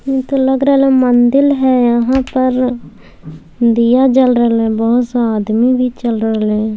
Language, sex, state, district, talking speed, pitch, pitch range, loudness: Maithili, female, Bihar, Samastipur, 160 wpm, 245 Hz, 230-260 Hz, -12 LUFS